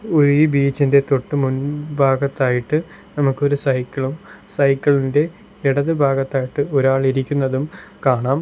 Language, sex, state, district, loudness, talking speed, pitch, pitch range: Malayalam, male, Kerala, Kollam, -18 LUFS, 115 wpm, 140 Hz, 135-150 Hz